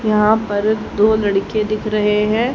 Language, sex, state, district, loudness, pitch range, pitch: Hindi, female, Haryana, Rohtak, -17 LUFS, 210-215 Hz, 215 Hz